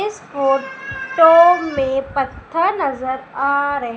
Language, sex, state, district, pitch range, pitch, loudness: Hindi, female, Madhya Pradesh, Umaria, 270-330 Hz, 280 Hz, -16 LUFS